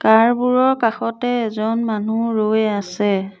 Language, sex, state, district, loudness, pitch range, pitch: Assamese, female, Assam, Sonitpur, -18 LUFS, 215-235 Hz, 225 Hz